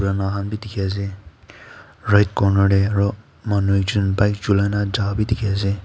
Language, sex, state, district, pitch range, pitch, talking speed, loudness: Nagamese, male, Nagaland, Kohima, 100-105 Hz, 100 Hz, 185 wpm, -20 LUFS